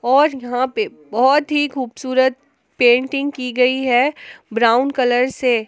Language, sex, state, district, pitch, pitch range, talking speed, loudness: Hindi, female, Jharkhand, Palamu, 260 Hz, 245-280 Hz, 135 wpm, -17 LUFS